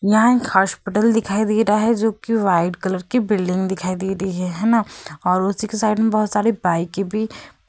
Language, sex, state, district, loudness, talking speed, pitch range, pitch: Hindi, female, Uttar Pradesh, Hamirpur, -19 LUFS, 220 wpm, 190-220 Hz, 210 Hz